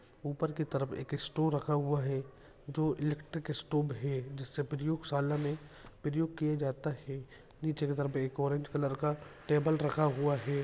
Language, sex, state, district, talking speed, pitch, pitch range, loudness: Hindi, male, Uttarakhand, Tehri Garhwal, 170 wpm, 145 Hz, 140-150 Hz, -34 LUFS